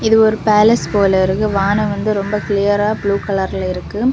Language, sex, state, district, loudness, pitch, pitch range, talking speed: Tamil, female, Tamil Nadu, Kanyakumari, -15 LUFS, 205 Hz, 200-215 Hz, 175 wpm